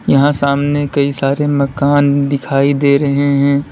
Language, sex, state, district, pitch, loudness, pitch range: Hindi, male, Uttar Pradesh, Lalitpur, 140 Hz, -13 LUFS, 140-145 Hz